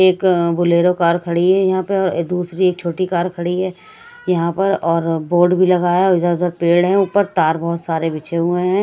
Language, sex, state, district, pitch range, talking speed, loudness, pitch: Hindi, female, Punjab, Kapurthala, 170-185 Hz, 210 wpm, -16 LUFS, 180 Hz